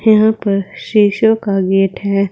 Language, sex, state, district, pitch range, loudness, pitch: Hindi, female, Uttar Pradesh, Saharanpur, 195-215 Hz, -14 LUFS, 200 Hz